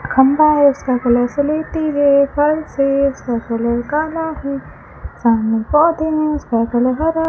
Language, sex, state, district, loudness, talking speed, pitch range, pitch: Hindi, female, Rajasthan, Bikaner, -16 LUFS, 155 wpm, 245-305 Hz, 280 Hz